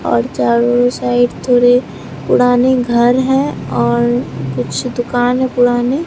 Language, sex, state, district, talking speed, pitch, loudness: Hindi, female, Bihar, Katihar, 120 wpm, 240 Hz, -14 LUFS